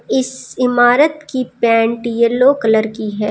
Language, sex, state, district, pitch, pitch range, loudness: Hindi, female, Jharkhand, Deoghar, 245 Hz, 225-260 Hz, -15 LUFS